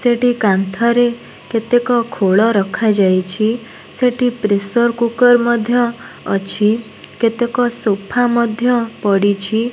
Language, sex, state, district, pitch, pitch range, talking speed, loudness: Odia, female, Odisha, Nuapada, 230 Hz, 205-240 Hz, 85 wpm, -15 LUFS